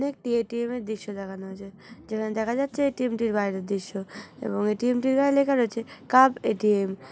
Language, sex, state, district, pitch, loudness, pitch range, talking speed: Bengali, female, West Bengal, North 24 Parganas, 220 Hz, -25 LUFS, 200-245 Hz, 175 wpm